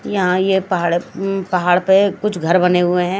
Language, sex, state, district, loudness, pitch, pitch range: Hindi, female, Himachal Pradesh, Shimla, -16 LUFS, 185 Hz, 180-195 Hz